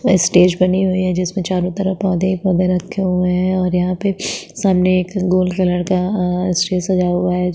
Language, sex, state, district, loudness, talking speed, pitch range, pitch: Hindi, female, Chhattisgarh, Sukma, -17 LUFS, 215 wpm, 180-190 Hz, 185 Hz